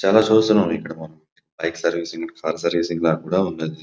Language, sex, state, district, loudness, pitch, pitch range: Telugu, male, Andhra Pradesh, Visakhapatnam, -21 LUFS, 85 Hz, 80-95 Hz